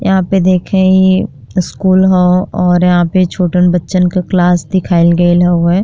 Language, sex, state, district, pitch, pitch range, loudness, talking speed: Bhojpuri, female, Uttar Pradesh, Deoria, 180 Hz, 175-185 Hz, -11 LUFS, 165 wpm